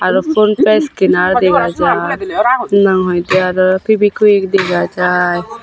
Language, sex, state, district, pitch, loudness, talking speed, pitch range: Chakma, female, Tripura, Unakoti, 185 Hz, -12 LUFS, 105 wpm, 180-210 Hz